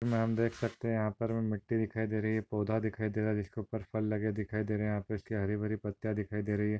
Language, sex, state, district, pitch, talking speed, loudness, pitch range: Hindi, male, Maharashtra, Solapur, 110 Hz, 290 wpm, -34 LUFS, 105-110 Hz